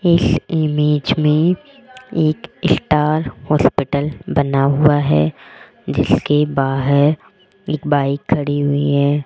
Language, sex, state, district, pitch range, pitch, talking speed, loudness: Hindi, female, Rajasthan, Jaipur, 140-155 Hz, 150 Hz, 105 wpm, -17 LUFS